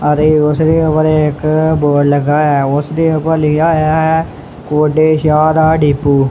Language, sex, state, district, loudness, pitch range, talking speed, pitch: Punjabi, male, Punjab, Kapurthala, -12 LUFS, 150-160 Hz, 170 wpm, 155 Hz